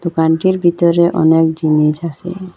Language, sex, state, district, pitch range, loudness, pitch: Bengali, female, Assam, Hailakandi, 160-175 Hz, -13 LUFS, 170 Hz